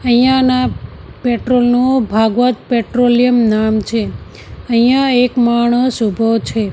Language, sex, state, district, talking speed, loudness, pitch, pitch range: Gujarati, female, Gujarat, Gandhinagar, 105 wpm, -13 LUFS, 240 Hz, 225-250 Hz